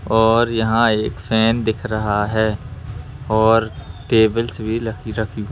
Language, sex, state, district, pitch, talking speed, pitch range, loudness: Hindi, male, Madhya Pradesh, Bhopal, 110 Hz, 120 wpm, 110-115 Hz, -18 LUFS